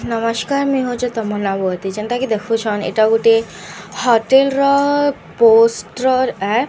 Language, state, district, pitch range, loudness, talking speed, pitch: Sambalpuri, Odisha, Sambalpur, 215-260 Hz, -16 LUFS, 145 wpm, 230 Hz